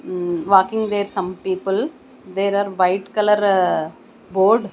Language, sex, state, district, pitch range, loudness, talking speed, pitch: English, female, Odisha, Nuapada, 185-205 Hz, -19 LUFS, 125 wpm, 195 Hz